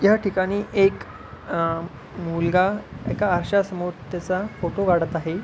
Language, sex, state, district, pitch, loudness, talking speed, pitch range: Marathi, male, Maharashtra, Pune, 180 Hz, -23 LUFS, 130 wpm, 170-195 Hz